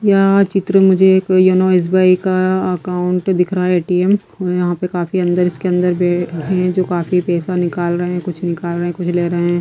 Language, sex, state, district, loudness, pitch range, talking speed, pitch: Hindi, female, Himachal Pradesh, Shimla, -15 LUFS, 175-185 Hz, 210 wpm, 180 Hz